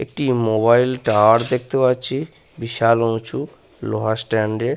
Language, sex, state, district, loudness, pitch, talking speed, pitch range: Bengali, male, West Bengal, Purulia, -18 LUFS, 115 Hz, 125 wpm, 110-125 Hz